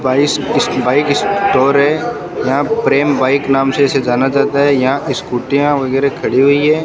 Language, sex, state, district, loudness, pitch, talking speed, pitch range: Hindi, male, Rajasthan, Bikaner, -13 LUFS, 140 Hz, 175 wpm, 135-145 Hz